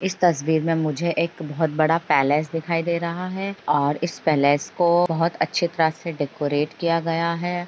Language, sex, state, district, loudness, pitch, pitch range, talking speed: Hindi, female, Bihar, Begusarai, -22 LUFS, 165 Hz, 155-170 Hz, 190 wpm